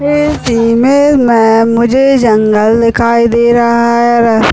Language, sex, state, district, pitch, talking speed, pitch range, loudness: Hindi, male, Chhattisgarh, Raigarh, 235 Hz, 130 wpm, 230-245 Hz, -9 LUFS